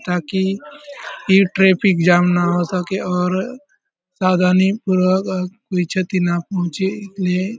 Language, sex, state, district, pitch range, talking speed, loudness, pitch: Hindi, male, Chhattisgarh, Bastar, 180-195 Hz, 125 wpm, -17 LUFS, 185 Hz